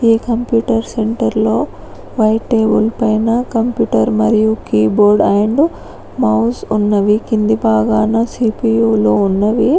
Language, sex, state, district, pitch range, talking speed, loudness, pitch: Telugu, female, Telangana, Mahabubabad, 210-230 Hz, 100 wpm, -14 LUFS, 220 Hz